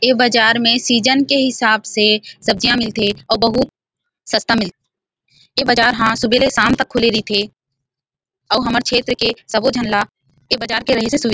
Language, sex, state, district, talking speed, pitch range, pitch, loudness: Chhattisgarhi, female, Chhattisgarh, Rajnandgaon, 185 wpm, 215-245 Hz, 230 Hz, -15 LUFS